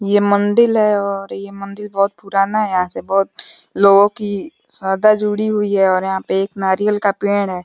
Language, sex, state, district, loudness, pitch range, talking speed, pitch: Hindi, male, Uttar Pradesh, Deoria, -16 LUFS, 195-210 Hz, 205 wpm, 200 Hz